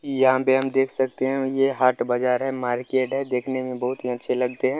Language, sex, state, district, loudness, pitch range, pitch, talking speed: Maithili, male, Bihar, Darbhanga, -22 LUFS, 125-135 Hz, 130 Hz, 235 wpm